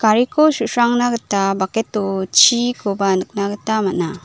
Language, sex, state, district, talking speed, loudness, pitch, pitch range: Garo, female, Meghalaya, South Garo Hills, 115 wpm, -17 LUFS, 215 Hz, 195-235 Hz